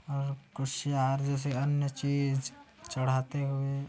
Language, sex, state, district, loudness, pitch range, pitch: Hindi, male, Chhattisgarh, Kabirdham, -32 LUFS, 135-140 Hz, 140 Hz